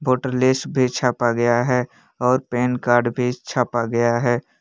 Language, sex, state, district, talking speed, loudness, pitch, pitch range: Hindi, male, Jharkhand, Palamu, 170 wpm, -20 LUFS, 125 Hz, 120-130 Hz